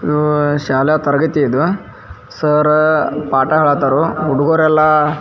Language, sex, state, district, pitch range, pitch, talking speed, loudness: Kannada, male, Karnataka, Dharwad, 140-155 Hz, 150 Hz, 115 wpm, -14 LUFS